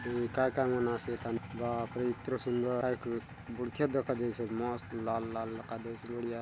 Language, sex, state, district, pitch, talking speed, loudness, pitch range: Halbi, male, Chhattisgarh, Bastar, 120 Hz, 235 wpm, -35 LUFS, 115-125 Hz